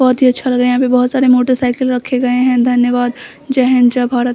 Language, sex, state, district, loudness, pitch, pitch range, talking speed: Hindi, female, Bihar, Samastipur, -13 LUFS, 250 Hz, 245-255 Hz, 260 wpm